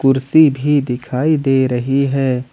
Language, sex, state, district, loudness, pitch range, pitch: Hindi, male, Jharkhand, Ranchi, -15 LUFS, 130-145 Hz, 135 Hz